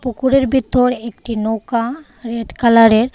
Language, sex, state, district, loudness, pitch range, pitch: Bengali, female, Tripura, West Tripura, -16 LUFS, 230-260 Hz, 235 Hz